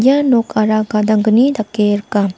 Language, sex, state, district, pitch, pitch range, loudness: Garo, female, Meghalaya, West Garo Hills, 215 Hz, 210-235 Hz, -14 LUFS